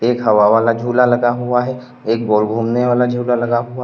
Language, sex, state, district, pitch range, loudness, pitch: Hindi, male, Uttar Pradesh, Lalitpur, 115-125 Hz, -15 LUFS, 120 Hz